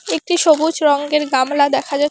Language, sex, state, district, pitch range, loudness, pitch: Bengali, female, West Bengal, Alipurduar, 285-315 Hz, -16 LUFS, 295 Hz